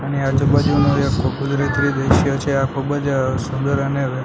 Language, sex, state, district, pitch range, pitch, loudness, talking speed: Gujarati, male, Gujarat, Gandhinagar, 135-140 Hz, 140 Hz, -18 LUFS, 155 wpm